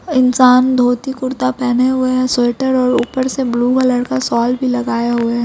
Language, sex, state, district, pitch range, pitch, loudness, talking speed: Hindi, female, Bihar, Muzaffarpur, 245-260 Hz, 255 Hz, -14 LUFS, 200 wpm